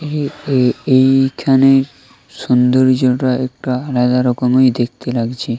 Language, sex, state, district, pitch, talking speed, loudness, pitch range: Bengali, male, Jharkhand, Jamtara, 130 Hz, 95 wpm, -14 LUFS, 125-135 Hz